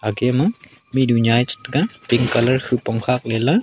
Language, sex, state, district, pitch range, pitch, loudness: Wancho, male, Arunachal Pradesh, Longding, 115-130 Hz, 120 Hz, -19 LUFS